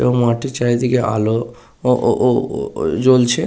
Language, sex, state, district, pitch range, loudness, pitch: Bengali, male, West Bengal, Paschim Medinipur, 120-125 Hz, -17 LUFS, 120 Hz